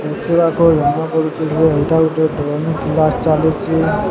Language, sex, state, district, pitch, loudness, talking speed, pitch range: Odia, male, Odisha, Sambalpur, 160 Hz, -15 LUFS, 130 wpm, 155-160 Hz